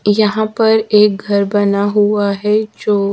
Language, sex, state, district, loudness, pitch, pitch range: Hindi, female, Madhya Pradesh, Dhar, -14 LUFS, 210 Hz, 205-215 Hz